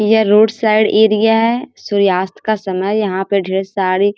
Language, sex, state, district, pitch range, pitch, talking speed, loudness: Hindi, female, Uttar Pradesh, Gorakhpur, 195-220 Hz, 210 Hz, 185 wpm, -14 LUFS